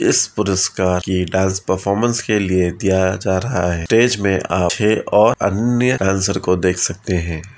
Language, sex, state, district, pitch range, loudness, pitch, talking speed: Hindi, male, Bihar, Vaishali, 90-105 Hz, -17 LUFS, 95 Hz, 175 wpm